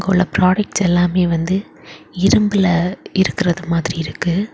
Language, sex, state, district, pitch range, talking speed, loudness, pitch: Tamil, female, Tamil Nadu, Kanyakumari, 175-190 Hz, 105 wpm, -17 LUFS, 180 Hz